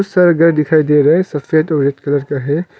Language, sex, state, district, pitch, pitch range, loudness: Hindi, male, Arunachal Pradesh, Longding, 155 Hz, 145-165 Hz, -13 LUFS